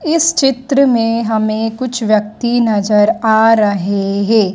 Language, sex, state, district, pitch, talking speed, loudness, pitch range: Hindi, female, Madhya Pradesh, Dhar, 225 Hz, 130 wpm, -13 LUFS, 210-240 Hz